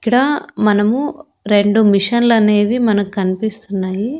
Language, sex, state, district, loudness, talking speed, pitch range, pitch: Telugu, female, Andhra Pradesh, Annamaya, -15 LUFS, 100 wpm, 205-240 Hz, 215 Hz